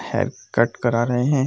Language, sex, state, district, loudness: Hindi, male, Bihar, Jamui, -21 LUFS